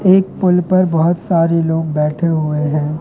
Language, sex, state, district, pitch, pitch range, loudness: Hindi, male, Madhya Pradesh, Katni, 165 Hz, 155-180 Hz, -15 LUFS